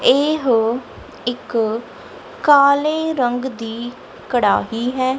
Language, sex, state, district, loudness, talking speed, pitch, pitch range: Punjabi, female, Punjab, Kapurthala, -18 LUFS, 80 wpm, 255 Hz, 235-290 Hz